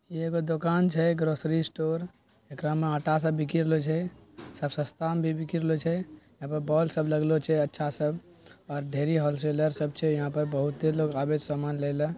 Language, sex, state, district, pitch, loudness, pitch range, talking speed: Maithili, male, Bihar, Bhagalpur, 155 Hz, -28 LUFS, 150-160 Hz, 200 wpm